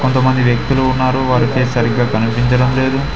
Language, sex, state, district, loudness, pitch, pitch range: Telugu, male, Telangana, Mahabubabad, -14 LUFS, 125 Hz, 120-130 Hz